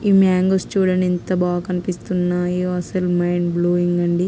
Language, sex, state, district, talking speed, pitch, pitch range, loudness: Telugu, female, Andhra Pradesh, Krishna, 110 wpm, 180 Hz, 175-185 Hz, -19 LUFS